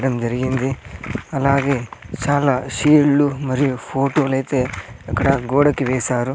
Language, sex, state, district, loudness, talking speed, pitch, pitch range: Telugu, male, Andhra Pradesh, Sri Satya Sai, -19 LUFS, 95 wpm, 135 Hz, 125-140 Hz